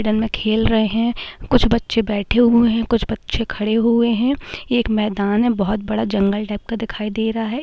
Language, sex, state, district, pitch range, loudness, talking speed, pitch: Hindi, female, Bihar, Araria, 215-235 Hz, -19 LUFS, 220 wpm, 225 Hz